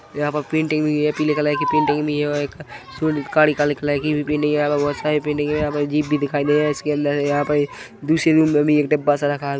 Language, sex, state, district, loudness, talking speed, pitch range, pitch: Hindi, male, Chhattisgarh, Rajnandgaon, -19 LUFS, 330 wpm, 145-150 Hz, 150 Hz